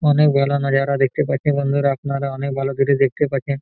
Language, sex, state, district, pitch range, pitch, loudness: Bengali, male, West Bengal, Malda, 135-140 Hz, 140 Hz, -19 LUFS